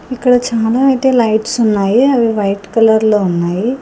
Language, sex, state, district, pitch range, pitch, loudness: Telugu, female, Telangana, Hyderabad, 210-250 Hz, 225 Hz, -12 LUFS